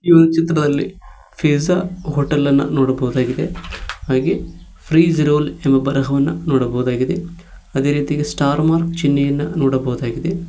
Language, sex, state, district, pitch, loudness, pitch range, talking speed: Kannada, male, Karnataka, Koppal, 145 Hz, -17 LUFS, 135-165 Hz, 105 wpm